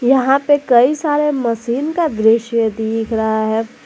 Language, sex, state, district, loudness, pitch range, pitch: Hindi, female, Jharkhand, Garhwa, -16 LUFS, 225-285 Hz, 240 Hz